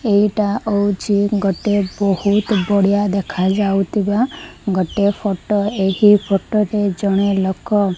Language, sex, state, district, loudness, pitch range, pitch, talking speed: Odia, female, Odisha, Malkangiri, -17 LUFS, 195-210 Hz, 200 Hz, 105 wpm